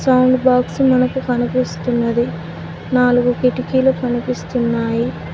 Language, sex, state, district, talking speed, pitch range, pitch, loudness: Telugu, female, Telangana, Mahabubabad, 65 wpm, 240-255 Hz, 250 Hz, -17 LUFS